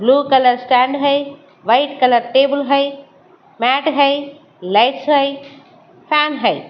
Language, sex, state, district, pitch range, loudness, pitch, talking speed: Hindi, female, Haryana, Charkhi Dadri, 255-285 Hz, -15 LUFS, 280 Hz, 125 wpm